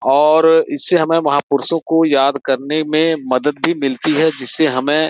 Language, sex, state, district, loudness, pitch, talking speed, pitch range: Hindi, male, Uttar Pradesh, Gorakhpur, -15 LUFS, 155 Hz, 175 wpm, 140-160 Hz